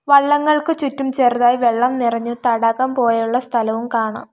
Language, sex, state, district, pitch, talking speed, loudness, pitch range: Malayalam, female, Kerala, Kollam, 245 Hz, 125 wpm, -17 LUFS, 230-270 Hz